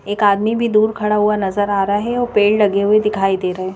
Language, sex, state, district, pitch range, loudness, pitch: Hindi, female, Madhya Pradesh, Bhopal, 200-215 Hz, -16 LUFS, 210 Hz